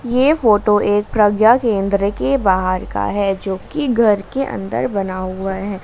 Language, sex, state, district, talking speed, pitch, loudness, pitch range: Hindi, female, Jharkhand, Garhwa, 165 wpm, 205 Hz, -17 LUFS, 195-230 Hz